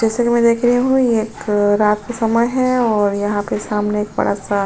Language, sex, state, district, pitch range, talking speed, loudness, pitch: Hindi, female, Uttar Pradesh, Jyotiba Phule Nagar, 210-240 Hz, 285 wpm, -16 LUFS, 220 Hz